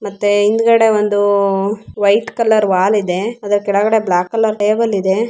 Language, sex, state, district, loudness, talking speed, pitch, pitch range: Kannada, female, Karnataka, Raichur, -14 LUFS, 145 wpm, 205 Hz, 200-220 Hz